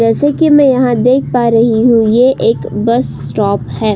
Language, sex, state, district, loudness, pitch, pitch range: Hindi, female, Uttar Pradesh, Budaun, -11 LUFS, 240 Hz, 230-260 Hz